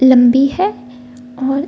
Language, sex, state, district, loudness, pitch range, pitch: Hindi, female, Bihar, Gaya, -13 LUFS, 245-275 Hz, 260 Hz